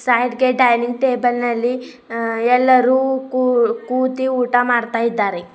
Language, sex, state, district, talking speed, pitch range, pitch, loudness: Kannada, female, Karnataka, Bidar, 120 wpm, 235-255 Hz, 245 Hz, -17 LUFS